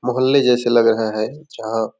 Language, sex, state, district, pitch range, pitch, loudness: Hindi, male, Chhattisgarh, Raigarh, 110-130 Hz, 120 Hz, -17 LUFS